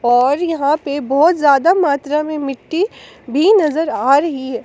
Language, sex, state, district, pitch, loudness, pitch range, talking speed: Hindi, female, Jharkhand, Palamu, 295 Hz, -15 LUFS, 275-320 Hz, 165 wpm